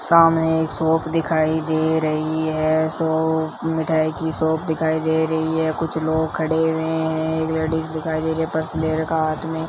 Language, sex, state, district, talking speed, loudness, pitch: Hindi, female, Rajasthan, Bikaner, 205 wpm, -21 LUFS, 160 Hz